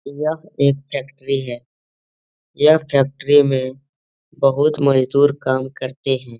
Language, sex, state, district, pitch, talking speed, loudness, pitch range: Hindi, male, Bihar, Jahanabad, 140 Hz, 115 wpm, -18 LUFS, 130-145 Hz